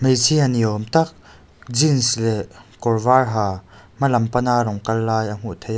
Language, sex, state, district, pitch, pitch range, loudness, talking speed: Mizo, male, Mizoram, Aizawl, 115 Hz, 105-125 Hz, -19 LUFS, 210 wpm